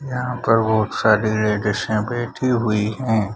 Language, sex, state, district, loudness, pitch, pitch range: Hindi, male, Bihar, Madhepura, -20 LUFS, 110 Hz, 110-120 Hz